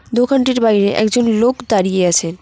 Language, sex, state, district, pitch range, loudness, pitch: Bengali, female, West Bengal, Cooch Behar, 190-245 Hz, -14 LUFS, 220 Hz